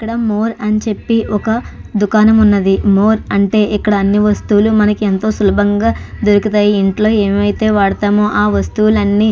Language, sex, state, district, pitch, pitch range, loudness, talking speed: Telugu, female, Andhra Pradesh, Chittoor, 210 Hz, 205-215 Hz, -13 LUFS, 140 wpm